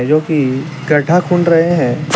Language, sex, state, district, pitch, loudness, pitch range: Hindi, male, Jharkhand, Deoghar, 155 Hz, -13 LUFS, 145-170 Hz